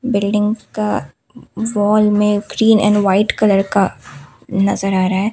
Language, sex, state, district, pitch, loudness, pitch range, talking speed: Hindi, female, Assam, Kamrup Metropolitan, 205 Hz, -15 LUFS, 190-210 Hz, 145 wpm